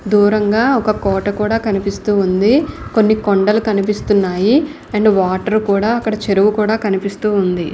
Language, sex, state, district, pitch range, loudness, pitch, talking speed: Telugu, female, Andhra Pradesh, Srikakulam, 200-220 Hz, -15 LUFS, 210 Hz, 125 wpm